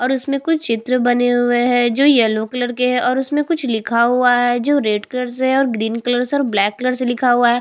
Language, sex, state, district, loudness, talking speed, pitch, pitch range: Hindi, female, Chhattisgarh, Bastar, -16 LUFS, 270 wpm, 245 Hz, 240-260 Hz